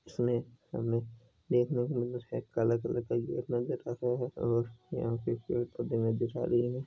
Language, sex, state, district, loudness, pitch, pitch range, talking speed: Hindi, female, Rajasthan, Nagaur, -33 LUFS, 120 Hz, 115-125 Hz, 175 wpm